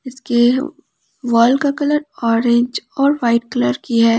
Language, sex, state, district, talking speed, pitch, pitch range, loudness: Hindi, female, Jharkhand, Palamu, 145 wpm, 240 Hz, 230-275 Hz, -16 LUFS